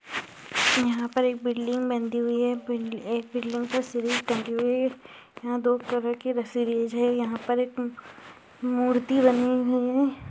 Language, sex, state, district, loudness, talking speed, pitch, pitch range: Hindi, female, Maharashtra, Chandrapur, -26 LUFS, 175 wpm, 245 Hz, 235-250 Hz